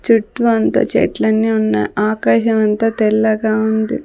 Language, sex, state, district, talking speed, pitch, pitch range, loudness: Telugu, female, Andhra Pradesh, Sri Satya Sai, 120 wpm, 220 Hz, 215-225 Hz, -15 LUFS